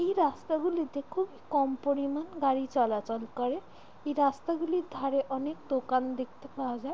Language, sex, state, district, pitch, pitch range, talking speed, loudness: Bengali, female, West Bengal, Jalpaiguri, 280 Hz, 260-315 Hz, 145 wpm, -31 LUFS